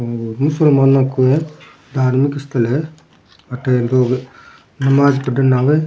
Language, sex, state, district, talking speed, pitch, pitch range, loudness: Rajasthani, male, Rajasthan, Churu, 135 wpm, 130 Hz, 125-140 Hz, -15 LUFS